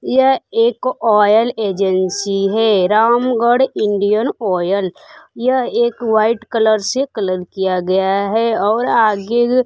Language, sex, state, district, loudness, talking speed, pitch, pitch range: Hindi, female, Bihar, Kaimur, -15 LUFS, 125 wpm, 220 Hz, 195-235 Hz